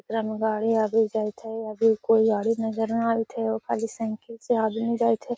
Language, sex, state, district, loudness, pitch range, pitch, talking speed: Magahi, female, Bihar, Gaya, -25 LUFS, 220-225 Hz, 225 Hz, 245 wpm